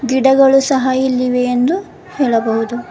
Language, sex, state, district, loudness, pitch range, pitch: Kannada, female, Karnataka, Bidar, -14 LUFS, 250-270 Hz, 260 Hz